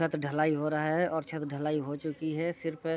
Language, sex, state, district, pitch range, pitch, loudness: Hindi, male, Bihar, Sitamarhi, 150-160 Hz, 155 Hz, -32 LUFS